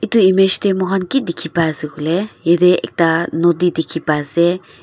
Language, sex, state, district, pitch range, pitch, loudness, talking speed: Nagamese, female, Nagaland, Dimapur, 165-190 Hz, 175 Hz, -16 LUFS, 150 wpm